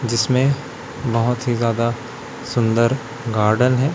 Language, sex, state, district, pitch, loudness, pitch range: Hindi, male, Chhattisgarh, Raipur, 120 Hz, -19 LUFS, 115-125 Hz